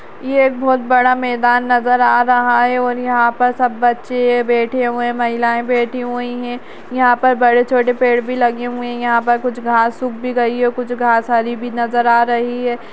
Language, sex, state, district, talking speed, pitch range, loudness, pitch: Kumaoni, female, Uttarakhand, Uttarkashi, 215 wpm, 240-250 Hz, -15 LUFS, 245 Hz